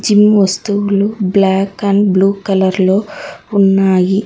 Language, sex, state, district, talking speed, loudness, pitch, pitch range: Telugu, female, Telangana, Hyderabad, 110 wpm, -12 LUFS, 200 Hz, 190-205 Hz